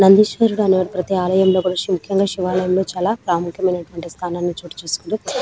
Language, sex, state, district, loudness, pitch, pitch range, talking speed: Telugu, female, Telangana, Nalgonda, -18 LUFS, 185 Hz, 175-195 Hz, 100 wpm